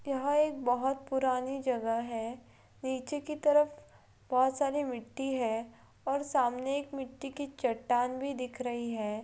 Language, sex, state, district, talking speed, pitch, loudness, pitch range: Hindi, female, Bihar, Purnia, 150 wpm, 260 Hz, -33 LUFS, 245-280 Hz